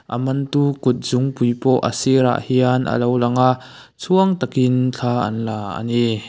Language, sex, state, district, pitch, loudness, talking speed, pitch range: Mizo, male, Mizoram, Aizawl, 125 Hz, -18 LUFS, 160 wpm, 120-130 Hz